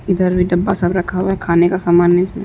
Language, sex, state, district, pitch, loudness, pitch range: Hindi, female, Uttar Pradesh, Deoria, 180 Hz, -15 LUFS, 175-190 Hz